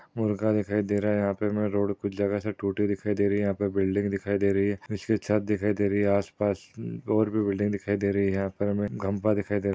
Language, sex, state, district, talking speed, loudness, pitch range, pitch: Hindi, male, Maharashtra, Sindhudurg, 260 wpm, -27 LUFS, 100-105 Hz, 100 Hz